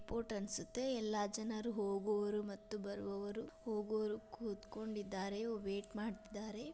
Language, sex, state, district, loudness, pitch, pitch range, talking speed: Kannada, female, Karnataka, Dharwad, -43 LUFS, 215 Hz, 205-220 Hz, 100 wpm